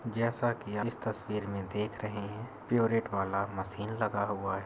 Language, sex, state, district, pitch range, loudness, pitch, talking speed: Hindi, male, Andhra Pradesh, Krishna, 100-115 Hz, -34 LUFS, 105 Hz, 180 wpm